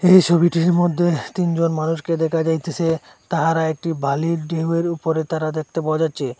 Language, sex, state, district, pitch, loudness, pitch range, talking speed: Bengali, male, Assam, Hailakandi, 165 Hz, -20 LUFS, 160-170 Hz, 150 wpm